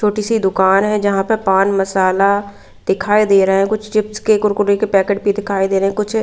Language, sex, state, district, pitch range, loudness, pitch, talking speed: Hindi, female, Delhi, New Delhi, 195-210 Hz, -15 LUFS, 200 Hz, 230 wpm